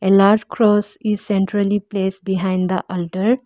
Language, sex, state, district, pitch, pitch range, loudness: English, female, Arunachal Pradesh, Lower Dibang Valley, 200 Hz, 190-210 Hz, -18 LUFS